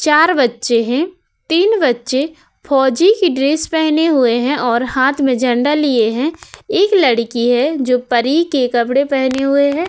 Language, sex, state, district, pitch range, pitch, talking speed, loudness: Hindi, female, Uttar Pradesh, Hamirpur, 250-320 Hz, 275 Hz, 165 wpm, -14 LUFS